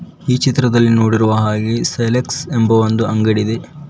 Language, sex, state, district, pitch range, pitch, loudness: Kannada, male, Karnataka, Koppal, 110-130 Hz, 115 Hz, -15 LUFS